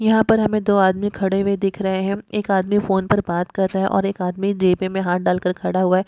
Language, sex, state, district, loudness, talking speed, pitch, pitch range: Hindi, female, Chhattisgarh, Jashpur, -19 LUFS, 265 wpm, 195 Hz, 190-205 Hz